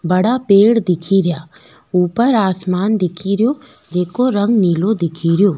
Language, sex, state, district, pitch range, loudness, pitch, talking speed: Rajasthani, female, Rajasthan, Nagaur, 180-220 Hz, -15 LUFS, 195 Hz, 140 wpm